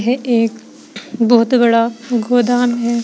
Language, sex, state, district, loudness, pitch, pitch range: Hindi, female, Uttar Pradesh, Saharanpur, -14 LUFS, 235 Hz, 230-245 Hz